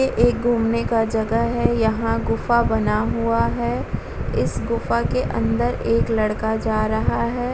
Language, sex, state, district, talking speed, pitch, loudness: Hindi, female, Bihar, Vaishali, 160 wpm, 210 Hz, -21 LUFS